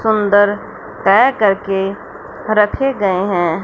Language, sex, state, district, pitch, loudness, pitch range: Hindi, female, Punjab, Fazilka, 205 Hz, -15 LUFS, 195-215 Hz